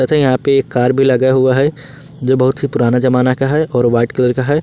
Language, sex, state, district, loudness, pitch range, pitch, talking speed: Hindi, male, Jharkhand, Ranchi, -13 LUFS, 125-140 Hz, 130 Hz, 260 wpm